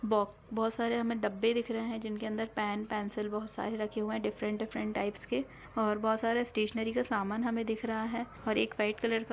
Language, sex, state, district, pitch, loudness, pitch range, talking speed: Hindi, female, Chhattisgarh, Raigarh, 220 Hz, -34 LUFS, 215-230 Hz, 220 wpm